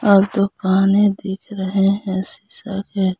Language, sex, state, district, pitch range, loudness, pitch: Hindi, female, Jharkhand, Garhwa, 190-200 Hz, -18 LUFS, 195 Hz